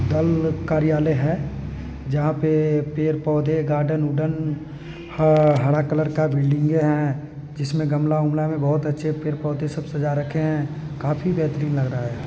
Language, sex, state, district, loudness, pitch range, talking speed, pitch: Hindi, male, Bihar, East Champaran, -22 LUFS, 150-155 Hz, 150 wpm, 150 Hz